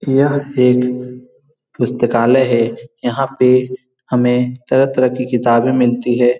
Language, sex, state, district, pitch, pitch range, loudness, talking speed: Hindi, male, Bihar, Saran, 125 Hz, 120-130 Hz, -15 LUFS, 115 wpm